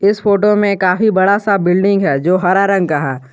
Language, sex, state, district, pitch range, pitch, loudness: Hindi, male, Jharkhand, Garhwa, 180-200 Hz, 195 Hz, -13 LUFS